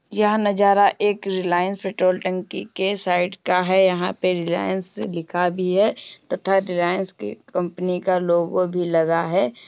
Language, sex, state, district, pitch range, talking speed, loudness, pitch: Hindi, female, Uttar Pradesh, Muzaffarnagar, 175-195 Hz, 155 wpm, -21 LUFS, 185 Hz